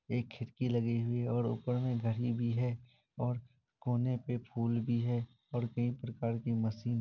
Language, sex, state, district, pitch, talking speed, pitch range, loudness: Hindi, male, Bihar, Kishanganj, 120 Hz, 190 wpm, 115-125 Hz, -36 LUFS